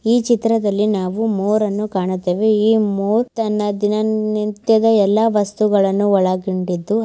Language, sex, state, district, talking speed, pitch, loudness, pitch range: Kannada, female, Karnataka, Belgaum, 110 wpm, 210 Hz, -17 LUFS, 200-220 Hz